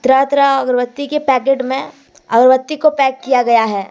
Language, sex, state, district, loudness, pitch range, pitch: Hindi, female, Jharkhand, Deoghar, -14 LUFS, 250-275 Hz, 265 Hz